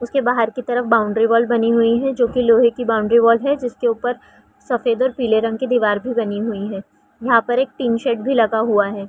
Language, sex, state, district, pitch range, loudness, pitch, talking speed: Hindi, female, Chhattisgarh, Raigarh, 225-245 Hz, -18 LUFS, 235 Hz, 225 wpm